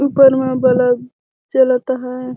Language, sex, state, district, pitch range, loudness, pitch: Surgujia, female, Chhattisgarh, Sarguja, 250-260 Hz, -15 LUFS, 255 Hz